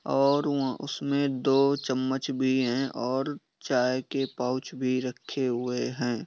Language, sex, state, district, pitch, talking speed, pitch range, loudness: Hindi, male, Bihar, East Champaran, 130 Hz, 145 wpm, 125-135 Hz, -28 LUFS